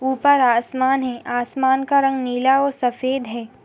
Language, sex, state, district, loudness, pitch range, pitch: Hindi, female, Jharkhand, Sahebganj, -19 LUFS, 245-270 Hz, 260 Hz